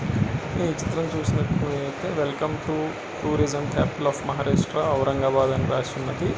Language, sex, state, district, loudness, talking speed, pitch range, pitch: Telugu, male, Andhra Pradesh, Srikakulam, -25 LUFS, 140 wpm, 140-155 Hz, 150 Hz